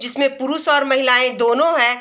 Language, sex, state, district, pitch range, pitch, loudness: Hindi, female, Bihar, Sitamarhi, 245-290 Hz, 265 Hz, -16 LUFS